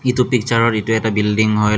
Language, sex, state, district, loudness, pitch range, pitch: Assamese, male, Assam, Hailakandi, -16 LUFS, 105-120 Hz, 110 Hz